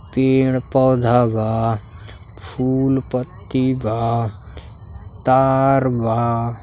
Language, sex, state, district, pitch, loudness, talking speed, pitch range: Bhojpuri, male, Uttar Pradesh, Deoria, 115 Hz, -18 LUFS, 70 wpm, 105-130 Hz